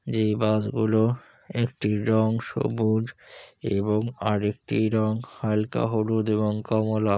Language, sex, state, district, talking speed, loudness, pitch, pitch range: Bengali, male, West Bengal, Jalpaiguri, 110 wpm, -25 LUFS, 110 Hz, 105-110 Hz